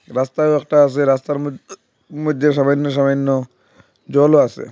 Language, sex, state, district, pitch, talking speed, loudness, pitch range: Bengali, male, Assam, Hailakandi, 145 Hz, 125 wpm, -16 LUFS, 135-150 Hz